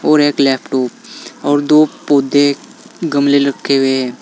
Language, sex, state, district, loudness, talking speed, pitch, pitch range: Hindi, male, Uttar Pradesh, Saharanpur, -14 LUFS, 140 wpm, 140 Hz, 135-145 Hz